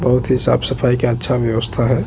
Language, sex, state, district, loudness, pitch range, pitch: Hindi, male, Chhattisgarh, Bastar, -17 LUFS, 120-125 Hz, 125 Hz